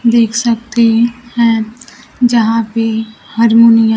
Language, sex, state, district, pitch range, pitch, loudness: Hindi, female, Bihar, Kaimur, 225-235 Hz, 230 Hz, -12 LUFS